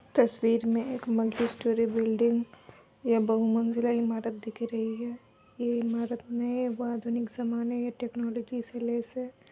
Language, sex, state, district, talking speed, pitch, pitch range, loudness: Hindi, female, Uttar Pradesh, Etah, 140 wpm, 235 Hz, 230-240 Hz, -30 LUFS